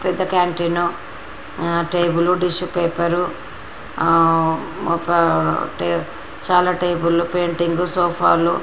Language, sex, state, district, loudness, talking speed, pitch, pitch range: Telugu, female, Andhra Pradesh, Srikakulam, -18 LUFS, 95 wpm, 170 Hz, 165-180 Hz